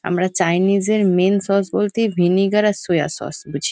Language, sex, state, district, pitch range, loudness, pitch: Bengali, female, West Bengal, Kolkata, 175-200 Hz, -18 LUFS, 190 Hz